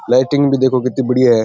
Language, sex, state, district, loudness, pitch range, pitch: Rajasthani, male, Rajasthan, Churu, -14 LUFS, 125-135 Hz, 130 Hz